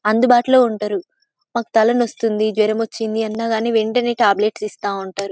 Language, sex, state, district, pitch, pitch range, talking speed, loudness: Telugu, female, Telangana, Karimnagar, 225 Hz, 215-240 Hz, 125 wpm, -18 LUFS